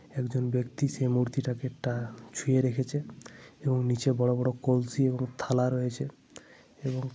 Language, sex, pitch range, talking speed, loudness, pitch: Bengali, male, 125-130 Hz, 140 wpm, -30 LUFS, 125 Hz